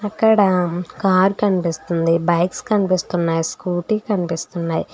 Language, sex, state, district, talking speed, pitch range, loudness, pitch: Telugu, female, Telangana, Hyderabad, 85 wpm, 170-200 Hz, -19 LUFS, 180 Hz